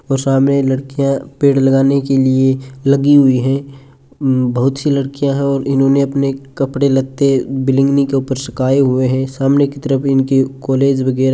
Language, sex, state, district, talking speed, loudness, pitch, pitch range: Hindi, male, Rajasthan, Churu, 175 wpm, -14 LUFS, 135 Hz, 135-140 Hz